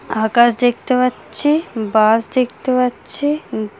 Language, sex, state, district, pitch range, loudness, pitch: Bengali, female, West Bengal, Dakshin Dinajpur, 220-255 Hz, -17 LUFS, 245 Hz